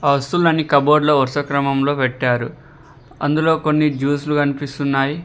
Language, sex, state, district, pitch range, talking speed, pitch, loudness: Telugu, male, Telangana, Hyderabad, 140-150 Hz, 105 wpm, 145 Hz, -17 LUFS